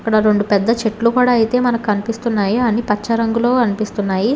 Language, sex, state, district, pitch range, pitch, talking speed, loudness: Telugu, female, Telangana, Hyderabad, 210-235 Hz, 225 Hz, 150 wpm, -16 LUFS